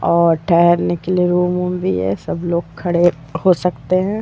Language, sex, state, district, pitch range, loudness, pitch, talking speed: Hindi, female, Bihar, Vaishali, 170-180 Hz, -17 LUFS, 175 Hz, 215 wpm